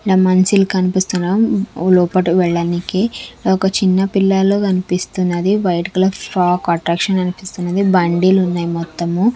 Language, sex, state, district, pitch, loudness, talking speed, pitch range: Telugu, female, Andhra Pradesh, Sri Satya Sai, 185 Hz, -15 LUFS, 110 wpm, 175-195 Hz